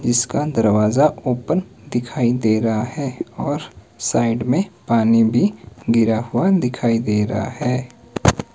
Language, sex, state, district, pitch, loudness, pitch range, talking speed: Hindi, male, Himachal Pradesh, Shimla, 120 Hz, -19 LUFS, 115-130 Hz, 125 wpm